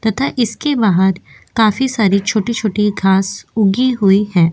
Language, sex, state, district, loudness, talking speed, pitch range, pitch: Hindi, female, Uttar Pradesh, Jyotiba Phule Nagar, -15 LUFS, 130 wpm, 195-230 Hz, 210 Hz